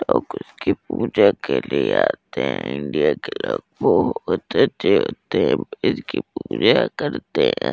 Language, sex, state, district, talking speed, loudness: Hindi, female, Delhi, New Delhi, 140 wpm, -20 LUFS